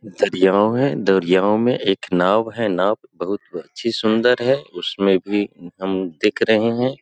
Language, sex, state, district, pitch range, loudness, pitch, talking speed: Hindi, male, Bihar, Sitamarhi, 95-115 Hz, -19 LUFS, 105 Hz, 160 wpm